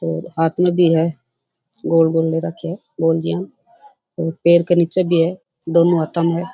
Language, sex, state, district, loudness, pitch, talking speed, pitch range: Rajasthani, female, Rajasthan, Churu, -17 LUFS, 170 Hz, 185 wpm, 165-175 Hz